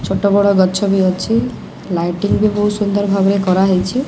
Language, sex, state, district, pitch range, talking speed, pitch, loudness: Odia, female, Odisha, Sambalpur, 185-205 Hz, 130 wpm, 200 Hz, -15 LUFS